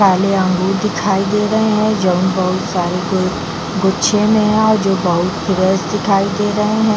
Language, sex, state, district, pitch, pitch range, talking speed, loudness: Hindi, female, Bihar, Vaishali, 195 Hz, 185-210 Hz, 145 wpm, -15 LUFS